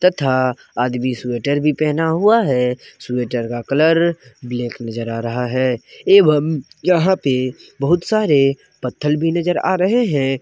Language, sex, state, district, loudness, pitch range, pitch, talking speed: Hindi, male, Jharkhand, Garhwa, -17 LUFS, 125-170 Hz, 140 Hz, 150 wpm